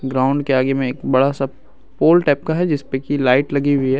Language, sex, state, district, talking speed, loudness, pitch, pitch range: Hindi, male, Bihar, Araria, 255 wpm, -17 LUFS, 135 Hz, 130-145 Hz